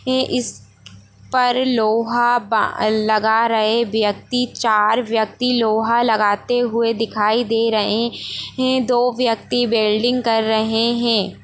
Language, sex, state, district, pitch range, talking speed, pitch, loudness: Hindi, female, Bihar, Darbhanga, 215-240 Hz, 120 wpm, 225 Hz, -18 LUFS